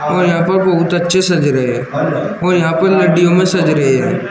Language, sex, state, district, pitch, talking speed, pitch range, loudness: Hindi, male, Uttar Pradesh, Shamli, 175 Hz, 210 wpm, 150-180 Hz, -13 LUFS